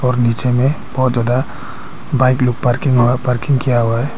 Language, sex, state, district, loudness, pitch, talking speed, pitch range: Hindi, male, Arunachal Pradesh, Papum Pare, -15 LUFS, 125 Hz, 160 wpm, 120-130 Hz